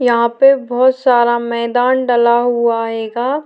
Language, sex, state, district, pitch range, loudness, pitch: Hindi, female, Uttarakhand, Tehri Garhwal, 235-255 Hz, -14 LUFS, 240 Hz